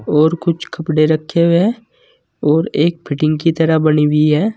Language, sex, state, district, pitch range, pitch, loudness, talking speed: Hindi, male, Uttar Pradesh, Saharanpur, 155-170 Hz, 160 Hz, -15 LUFS, 185 wpm